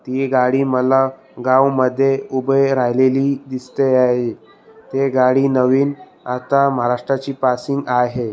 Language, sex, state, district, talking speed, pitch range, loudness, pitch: Marathi, male, Maharashtra, Aurangabad, 115 wpm, 125-135 Hz, -17 LUFS, 130 Hz